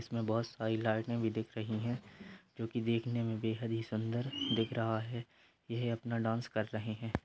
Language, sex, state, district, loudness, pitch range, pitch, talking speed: Hindi, male, Bihar, Purnia, -37 LUFS, 110-115 Hz, 115 Hz, 200 wpm